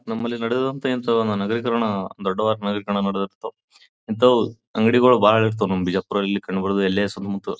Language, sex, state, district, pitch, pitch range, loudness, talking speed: Kannada, male, Karnataka, Bijapur, 110 Hz, 100-115 Hz, -21 LUFS, 125 wpm